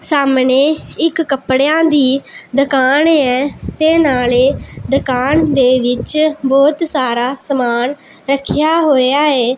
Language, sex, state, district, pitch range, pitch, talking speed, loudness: Punjabi, female, Punjab, Pathankot, 260-305 Hz, 275 Hz, 105 wpm, -13 LUFS